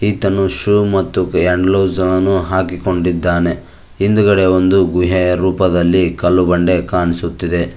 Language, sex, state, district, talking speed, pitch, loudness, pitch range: Kannada, male, Karnataka, Koppal, 110 wpm, 90 Hz, -14 LUFS, 90-95 Hz